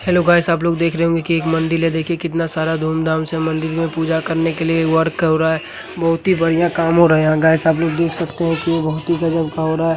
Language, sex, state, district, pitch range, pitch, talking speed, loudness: Hindi, male, Uttar Pradesh, Hamirpur, 160-165 Hz, 165 Hz, 290 wpm, -17 LUFS